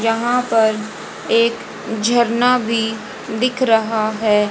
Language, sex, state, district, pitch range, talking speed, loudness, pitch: Hindi, female, Haryana, Jhajjar, 220-240 Hz, 105 wpm, -17 LUFS, 225 Hz